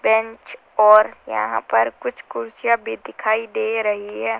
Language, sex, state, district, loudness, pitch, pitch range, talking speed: Hindi, female, Rajasthan, Jaipur, -20 LUFS, 215 Hz, 170-225 Hz, 150 wpm